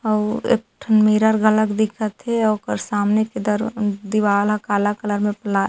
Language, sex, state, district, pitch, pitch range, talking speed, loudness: Chhattisgarhi, female, Chhattisgarh, Rajnandgaon, 215 Hz, 205-220 Hz, 180 wpm, -19 LUFS